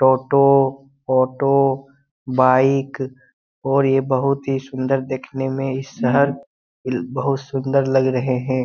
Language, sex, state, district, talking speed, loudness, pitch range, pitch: Hindi, male, Bihar, Lakhisarai, 120 wpm, -19 LUFS, 130-135 Hz, 135 Hz